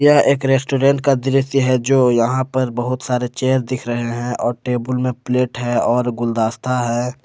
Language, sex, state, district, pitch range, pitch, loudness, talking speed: Hindi, male, Jharkhand, Palamu, 120-130 Hz, 125 Hz, -18 LUFS, 190 wpm